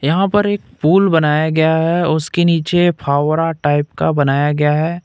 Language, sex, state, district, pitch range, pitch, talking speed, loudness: Hindi, male, Jharkhand, Ranchi, 150-175 Hz, 160 Hz, 180 wpm, -15 LUFS